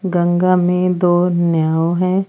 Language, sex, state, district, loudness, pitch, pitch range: Hindi, female, Uttar Pradesh, Saharanpur, -15 LUFS, 180 Hz, 175-180 Hz